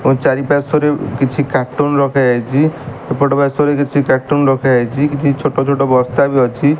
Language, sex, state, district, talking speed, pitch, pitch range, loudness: Odia, male, Odisha, Malkangiri, 140 wpm, 140 Hz, 130-145 Hz, -14 LUFS